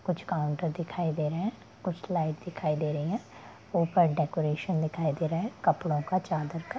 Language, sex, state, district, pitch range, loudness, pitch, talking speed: Hindi, female, Bihar, Darbhanga, 155-180 Hz, -30 LUFS, 165 Hz, 185 wpm